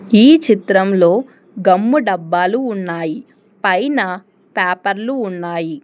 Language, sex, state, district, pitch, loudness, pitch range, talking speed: Telugu, female, Telangana, Hyderabad, 195 Hz, -15 LUFS, 180-235 Hz, 80 wpm